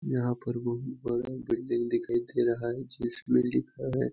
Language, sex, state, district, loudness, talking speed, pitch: Hindi, male, Chhattisgarh, Balrampur, -30 LUFS, 190 wpm, 120 Hz